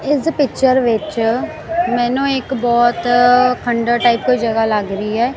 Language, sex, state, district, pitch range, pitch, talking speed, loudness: Punjabi, female, Punjab, Kapurthala, 230-260 Hz, 240 Hz, 145 wpm, -15 LUFS